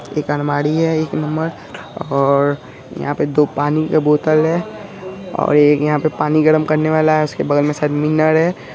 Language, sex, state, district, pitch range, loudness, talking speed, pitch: Hindi, male, Bihar, Araria, 145-160 Hz, -16 LUFS, 180 wpm, 155 Hz